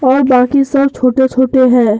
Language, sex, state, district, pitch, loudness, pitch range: Hindi, male, Jharkhand, Deoghar, 260 Hz, -11 LUFS, 250-270 Hz